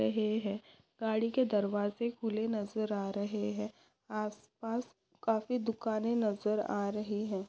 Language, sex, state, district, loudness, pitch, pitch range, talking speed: Hindi, female, Maharashtra, Nagpur, -35 LUFS, 215 Hz, 205-225 Hz, 145 wpm